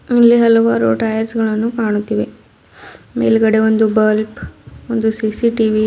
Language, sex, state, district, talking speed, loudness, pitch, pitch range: Kannada, female, Karnataka, Bidar, 110 wpm, -15 LUFS, 220 Hz, 215-230 Hz